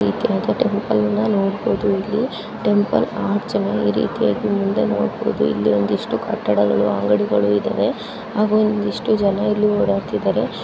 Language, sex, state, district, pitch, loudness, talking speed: Kannada, female, Karnataka, Gulbarga, 195 Hz, -19 LUFS, 115 wpm